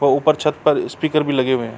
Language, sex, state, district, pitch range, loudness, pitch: Hindi, male, Uttar Pradesh, Jalaun, 130-150 Hz, -18 LUFS, 145 Hz